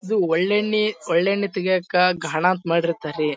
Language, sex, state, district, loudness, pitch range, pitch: Kannada, male, Karnataka, Bijapur, -21 LUFS, 170-200 Hz, 180 Hz